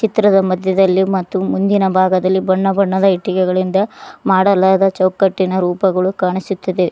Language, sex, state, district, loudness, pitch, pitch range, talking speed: Kannada, female, Karnataka, Koppal, -15 LUFS, 190 Hz, 185-195 Hz, 95 wpm